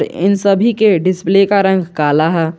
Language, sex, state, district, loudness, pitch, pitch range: Hindi, male, Jharkhand, Garhwa, -13 LUFS, 190 Hz, 170-200 Hz